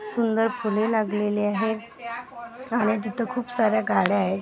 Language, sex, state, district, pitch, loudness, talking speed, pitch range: Marathi, female, Maharashtra, Gondia, 220 Hz, -25 LUFS, 135 wpm, 210-235 Hz